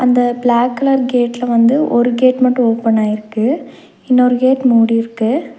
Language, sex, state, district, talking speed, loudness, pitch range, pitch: Tamil, female, Tamil Nadu, Nilgiris, 130 wpm, -14 LUFS, 230-255 Hz, 245 Hz